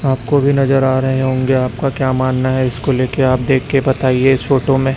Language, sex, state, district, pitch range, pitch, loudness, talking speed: Hindi, male, Chhattisgarh, Raipur, 130-135 Hz, 130 Hz, -15 LUFS, 230 wpm